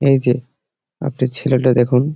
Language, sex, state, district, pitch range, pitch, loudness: Bengali, male, West Bengal, Malda, 125-140 Hz, 130 Hz, -17 LUFS